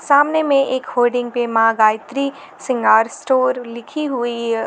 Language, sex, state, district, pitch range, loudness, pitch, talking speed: Hindi, female, Jharkhand, Garhwa, 235-275 Hz, -17 LUFS, 250 Hz, 140 wpm